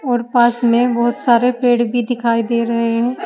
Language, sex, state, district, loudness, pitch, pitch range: Hindi, female, Uttar Pradesh, Saharanpur, -15 LUFS, 240 Hz, 235-245 Hz